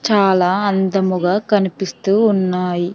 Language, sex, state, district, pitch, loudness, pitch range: Telugu, female, Andhra Pradesh, Sri Satya Sai, 190 Hz, -16 LUFS, 180-205 Hz